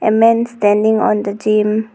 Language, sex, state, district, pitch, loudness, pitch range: English, female, Arunachal Pradesh, Longding, 220 Hz, -14 LUFS, 210-225 Hz